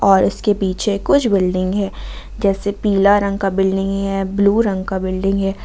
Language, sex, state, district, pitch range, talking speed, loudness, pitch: Hindi, female, Jharkhand, Ranchi, 195-200 Hz, 180 wpm, -17 LUFS, 195 Hz